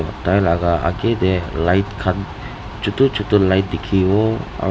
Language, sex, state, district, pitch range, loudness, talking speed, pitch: Nagamese, male, Nagaland, Dimapur, 90-105 Hz, -18 LUFS, 155 wpm, 95 Hz